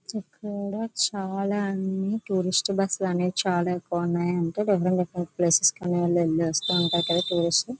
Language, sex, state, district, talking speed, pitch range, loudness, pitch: Telugu, female, Andhra Pradesh, Visakhapatnam, 170 wpm, 175-195 Hz, -25 LUFS, 180 Hz